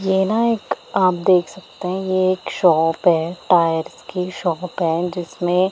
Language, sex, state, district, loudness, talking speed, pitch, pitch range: Hindi, female, Punjab, Pathankot, -19 LUFS, 170 wpm, 180 Hz, 175-190 Hz